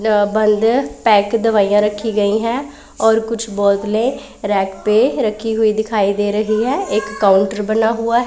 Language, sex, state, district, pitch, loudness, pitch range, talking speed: Hindi, female, Punjab, Pathankot, 215 Hz, -16 LUFS, 205-225 Hz, 160 wpm